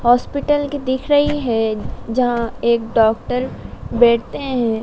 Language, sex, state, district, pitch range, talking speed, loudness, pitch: Hindi, female, Madhya Pradesh, Dhar, 230-270 Hz, 125 wpm, -18 LUFS, 245 Hz